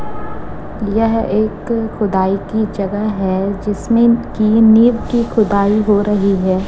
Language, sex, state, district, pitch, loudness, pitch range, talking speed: Hindi, female, Chhattisgarh, Raipur, 210 Hz, -15 LUFS, 200-225 Hz, 125 wpm